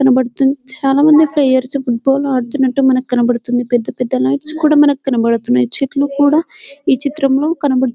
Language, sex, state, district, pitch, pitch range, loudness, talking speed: Telugu, female, Telangana, Karimnagar, 270 Hz, 250-285 Hz, -14 LUFS, 150 wpm